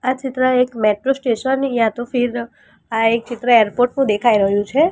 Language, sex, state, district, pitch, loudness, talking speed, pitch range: Gujarati, female, Gujarat, Gandhinagar, 245 Hz, -17 LUFS, 195 wpm, 225-255 Hz